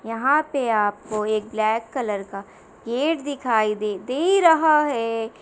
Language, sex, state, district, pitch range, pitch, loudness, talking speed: Hindi, female, Uttar Pradesh, Muzaffarnagar, 215-285 Hz, 230 Hz, -22 LUFS, 145 wpm